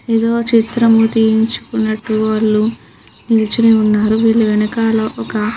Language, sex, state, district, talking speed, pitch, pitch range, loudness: Telugu, female, Andhra Pradesh, Krishna, 110 wpm, 220 Hz, 215-225 Hz, -14 LUFS